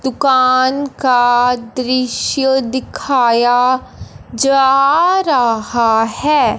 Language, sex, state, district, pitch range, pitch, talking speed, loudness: Hindi, female, Punjab, Fazilka, 245-270 Hz, 255 Hz, 65 wpm, -14 LUFS